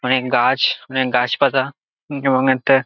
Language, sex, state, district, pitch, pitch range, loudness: Bengali, male, West Bengal, Jalpaiguri, 130 Hz, 130-135 Hz, -17 LUFS